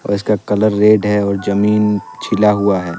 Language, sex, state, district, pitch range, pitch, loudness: Hindi, male, Jharkhand, Deoghar, 100-105 Hz, 105 Hz, -14 LUFS